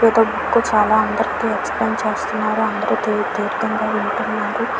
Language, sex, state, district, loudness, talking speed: Telugu, female, Andhra Pradesh, Visakhapatnam, -19 LUFS, 100 wpm